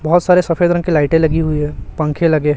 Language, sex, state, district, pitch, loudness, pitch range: Hindi, male, Chhattisgarh, Raipur, 160 Hz, -15 LUFS, 150-175 Hz